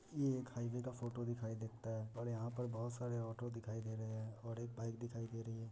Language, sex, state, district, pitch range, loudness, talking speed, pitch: Hindi, male, Bihar, Muzaffarpur, 115-120 Hz, -45 LUFS, 260 wpm, 115 Hz